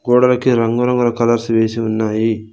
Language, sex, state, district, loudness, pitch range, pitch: Telugu, male, Telangana, Mahabubabad, -15 LUFS, 110-120 Hz, 115 Hz